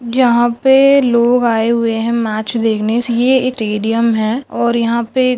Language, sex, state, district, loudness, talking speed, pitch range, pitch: Chhattisgarhi, female, Chhattisgarh, Rajnandgaon, -14 LUFS, 155 wpm, 225-250 Hz, 235 Hz